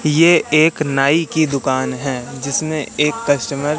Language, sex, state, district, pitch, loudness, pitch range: Hindi, male, Madhya Pradesh, Katni, 145 Hz, -16 LUFS, 135-155 Hz